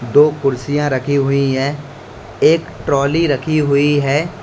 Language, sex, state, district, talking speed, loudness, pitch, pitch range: Hindi, male, Uttar Pradesh, Lalitpur, 135 wpm, -15 LUFS, 145 Hz, 135-150 Hz